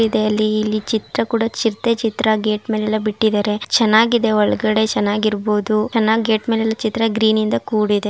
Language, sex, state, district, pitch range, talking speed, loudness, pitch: Kannada, female, Karnataka, Raichur, 215-225 Hz, 140 wpm, -17 LUFS, 215 Hz